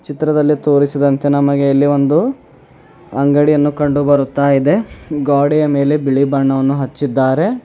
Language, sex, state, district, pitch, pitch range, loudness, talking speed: Kannada, male, Karnataka, Bidar, 145 Hz, 140-150 Hz, -14 LUFS, 95 wpm